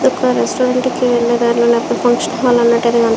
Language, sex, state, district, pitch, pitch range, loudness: Telugu, female, Andhra Pradesh, Srikakulam, 240 Hz, 235-255 Hz, -14 LUFS